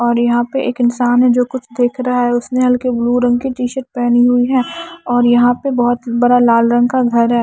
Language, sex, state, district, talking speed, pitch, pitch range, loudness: Hindi, female, Haryana, Charkhi Dadri, 250 wpm, 245 Hz, 240-250 Hz, -14 LUFS